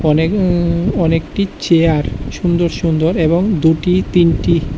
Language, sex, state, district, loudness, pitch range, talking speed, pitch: Bengali, male, Tripura, West Tripura, -15 LUFS, 160-180 Hz, 115 wpm, 170 Hz